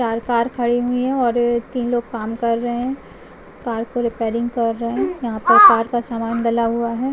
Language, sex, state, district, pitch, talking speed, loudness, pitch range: Hindi, female, Punjab, Kapurthala, 235 Hz, 220 wpm, -18 LUFS, 230-245 Hz